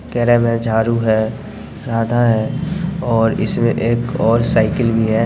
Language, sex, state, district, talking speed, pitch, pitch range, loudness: Hindi, male, Bihar, Sitamarhi, 160 wpm, 115 Hz, 115-120 Hz, -16 LUFS